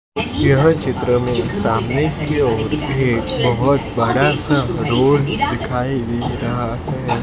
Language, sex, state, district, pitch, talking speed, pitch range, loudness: Hindi, male, Maharashtra, Mumbai Suburban, 125 Hz, 125 wpm, 120-140 Hz, -18 LUFS